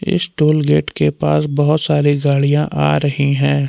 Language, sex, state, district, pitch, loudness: Hindi, male, Jharkhand, Palamu, 145 Hz, -15 LUFS